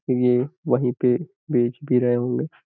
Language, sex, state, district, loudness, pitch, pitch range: Hindi, male, Uttar Pradesh, Gorakhpur, -22 LUFS, 125 Hz, 125-135 Hz